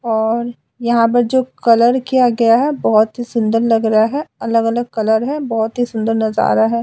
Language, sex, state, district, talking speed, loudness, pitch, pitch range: Hindi, female, Uttar Pradesh, Budaun, 200 wpm, -15 LUFS, 230 Hz, 225-245 Hz